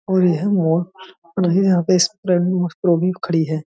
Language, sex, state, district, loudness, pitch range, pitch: Hindi, male, Uttar Pradesh, Budaun, -18 LUFS, 170-190 Hz, 180 Hz